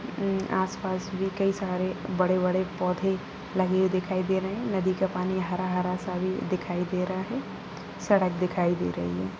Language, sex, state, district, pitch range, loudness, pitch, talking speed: Hindi, female, Bihar, Jahanabad, 180-190 Hz, -28 LUFS, 185 Hz, 180 wpm